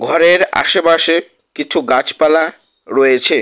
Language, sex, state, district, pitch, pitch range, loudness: Bengali, male, West Bengal, Alipurduar, 165 Hz, 155-170 Hz, -13 LUFS